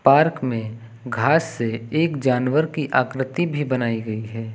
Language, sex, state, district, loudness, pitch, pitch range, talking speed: Hindi, male, Uttar Pradesh, Lucknow, -22 LUFS, 130 Hz, 115-150 Hz, 160 wpm